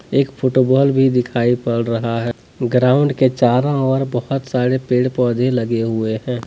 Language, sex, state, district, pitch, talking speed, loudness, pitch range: Hindi, male, Jharkhand, Deoghar, 125 Hz, 165 wpm, -17 LUFS, 120-130 Hz